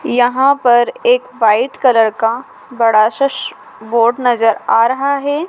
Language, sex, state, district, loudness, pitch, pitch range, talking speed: Hindi, female, Madhya Pradesh, Dhar, -13 LUFS, 245 Hz, 230-275 Hz, 155 wpm